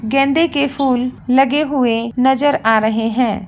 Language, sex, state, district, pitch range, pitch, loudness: Hindi, female, Bihar, Begusarai, 230-280 Hz, 260 Hz, -15 LUFS